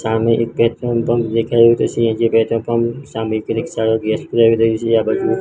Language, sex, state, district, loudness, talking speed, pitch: Gujarati, male, Gujarat, Gandhinagar, -16 LUFS, 200 wpm, 115 Hz